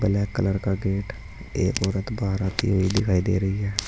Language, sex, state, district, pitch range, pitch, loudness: Hindi, male, Uttar Pradesh, Saharanpur, 95-100 Hz, 100 Hz, -24 LUFS